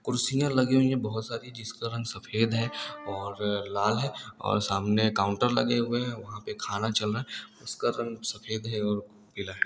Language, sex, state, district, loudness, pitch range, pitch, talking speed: Hindi, male, Uttar Pradesh, Varanasi, -29 LUFS, 105-120 Hz, 110 Hz, 200 wpm